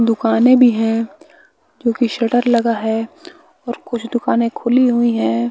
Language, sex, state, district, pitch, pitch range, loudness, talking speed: Hindi, male, Bihar, West Champaran, 240 Hz, 230-255 Hz, -16 LUFS, 155 wpm